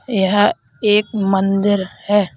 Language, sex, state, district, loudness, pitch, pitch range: Hindi, male, Madhya Pradesh, Bhopal, -17 LUFS, 205 Hz, 195-210 Hz